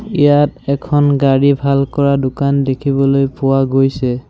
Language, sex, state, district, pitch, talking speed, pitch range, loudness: Assamese, male, Assam, Sonitpur, 140 Hz, 125 wpm, 135-140 Hz, -14 LUFS